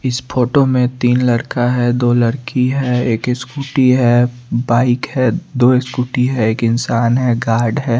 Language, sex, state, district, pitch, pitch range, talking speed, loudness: Hindi, male, Chandigarh, Chandigarh, 125 Hz, 120-130 Hz, 165 wpm, -15 LUFS